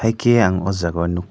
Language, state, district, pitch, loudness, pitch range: Kokborok, Tripura, Dhalai, 95 Hz, -18 LUFS, 85-115 Hz